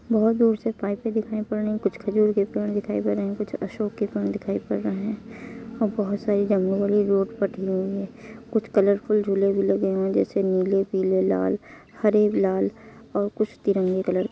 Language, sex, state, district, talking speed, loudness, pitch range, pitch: Hindi, female, Uttar Pradesh, Etah, 190 wpm, -24 LUFS, 195-215 Hz, 200 Hz